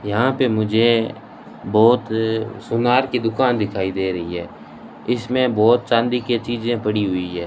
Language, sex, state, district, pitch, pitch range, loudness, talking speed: Hindi, male, Rajasthan, Bikaner, 115 Hz, 105-120 Hz, -19 LUFS, 150 wpm